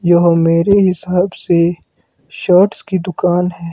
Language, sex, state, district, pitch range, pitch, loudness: Hindi, male, Himachal Pradesh, Shimla, 170-180 Hz, 180 Hz, -13 LUFS